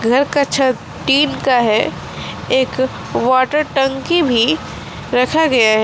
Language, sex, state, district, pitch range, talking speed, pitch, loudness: Hindi, female, West Bengal, Alipurduar, 250-285 Hz, 135 wpm, 260 Hz, -15 LUFS